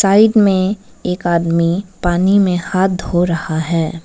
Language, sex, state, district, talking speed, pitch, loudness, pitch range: Hindi, female, Arunachal Pradesh, Lower Dibang Valley, 150 wpm, 180 Hz, -15 LUFS, 170-195 Hz